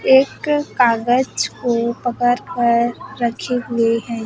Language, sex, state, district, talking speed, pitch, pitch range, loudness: Hindi, female, Chhattisgarh, Raipur, 115 wpm, 245 Hz, 235-255 Hz, -18 LUFS